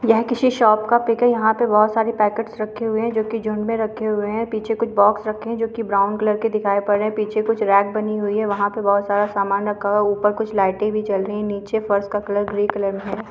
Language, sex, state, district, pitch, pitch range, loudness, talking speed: Hindi, female, Chhattisgarh, Jashpur, 215 Hz, 205-225 Hz, -20 LUFS, 285 wpm